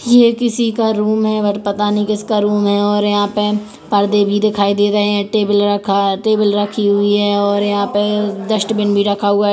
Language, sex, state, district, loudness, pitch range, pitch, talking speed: Hindi, female, Chhattisgarh, Kabirdham, -15 LUFS, 205-210 Hz, 205 Hz, 215 wpm